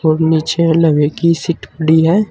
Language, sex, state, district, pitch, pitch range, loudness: Hindi, male, Uttar Pradesh, Saharanpur, 160 Hz, 155-170 Hz, -13 LUFS